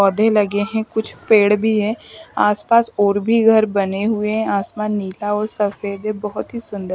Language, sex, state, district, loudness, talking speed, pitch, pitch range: Hindi, female, Bihar, West Champaran, -18 LUFS, 200 wpm, 210 Hz, 205-220 Hz